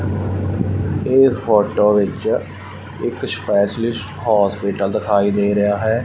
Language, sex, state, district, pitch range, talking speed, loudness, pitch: Punjabi, male, Punjab, Fazilka, 100-110 Hz, 100 wpm, -18 LUFS, 105 Hz